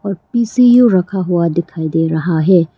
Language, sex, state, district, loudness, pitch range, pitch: Hindi, female, Arunachal Pradesh, Papum Pare, -13 LUFS, 165-200 Hz, 175 Hz